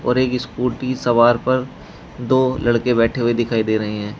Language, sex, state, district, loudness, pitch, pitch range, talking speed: Hindi, male, Uttar Pradesh, Shamli, -18 LUFS, 120 Hz, 115-130 Hz, 185 wpm